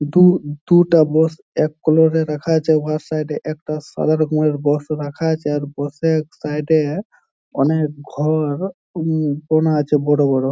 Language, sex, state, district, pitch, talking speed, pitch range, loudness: Bengali, male, West Bengal, Jhargram, 155 Hz, 170 wpm, 150-160 Hz, -18 LUFS